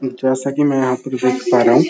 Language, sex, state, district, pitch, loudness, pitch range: Hindi, male, Uttar Pradesh, Muzaffarnagar, 130 Hz, -16 LUFS, 125-135 Hz